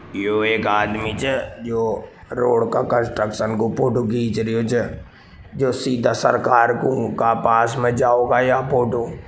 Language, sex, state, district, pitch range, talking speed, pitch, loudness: Marwari, male, Rajasthan, Nagaur, 110-120 Hz, 160 wpm, 115 Hz, -19 LUFS